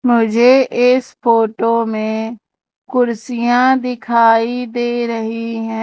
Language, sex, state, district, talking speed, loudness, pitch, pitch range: Hindi, female, Madhya Pradesh, Umaria, 95 wpm, -15 LUFS, 235 Hz, 225-245 Hz